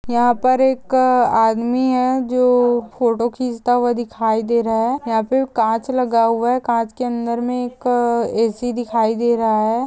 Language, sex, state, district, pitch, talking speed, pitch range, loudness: Hindi, female, Maharashtra, Nagpur, 240 Hz, 175 wpm, 230-250 Hz, -18 LUFS